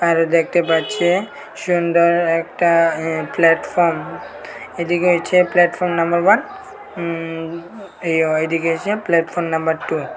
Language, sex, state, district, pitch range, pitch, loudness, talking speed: Bengali, male, Tripura, Unakoti, 165-175 Hz, 170 Hz, -17 LUFS, 110 wpm